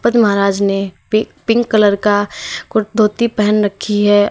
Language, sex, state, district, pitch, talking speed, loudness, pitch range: Hindi, female, Uttar Pradesh, Lalitpur, 210 Hz, 140 wpm, -15 LUFS, 205-220 Hz